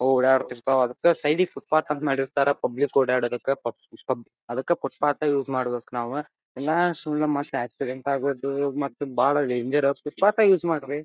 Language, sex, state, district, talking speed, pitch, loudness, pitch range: Kannada, male, Karnataka, Dharwad, 145 wpm, 140 Hz, -24 LUFS, 130-150 Hz